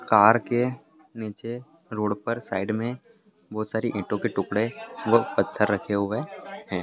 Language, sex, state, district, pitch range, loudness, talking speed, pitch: Hindi, male, Bihar, Lakhisarai, 105-125 Hz, -26 LUFS, 160 wpm, 110 Hz